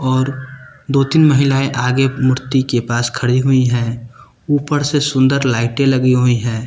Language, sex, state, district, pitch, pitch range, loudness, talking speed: Hindi, male, Uttar Pradesh, Lucknow, 130 Hz, 125-140 Hz, -15 LUFS, 160 wpm